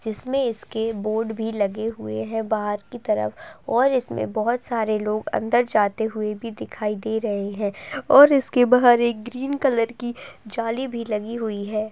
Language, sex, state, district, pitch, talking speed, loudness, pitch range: Hindi, female, Uttar Pradesh, Budaun, 225 Hz, 180 wpm, -22 LUFS, 215-240 Hz